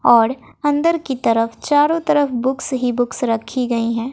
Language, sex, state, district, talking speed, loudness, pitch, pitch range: Hindi, female, Bihar, West Champaran, 175 wpm, -18 LUFS, 255 Hz, 235-290 Hz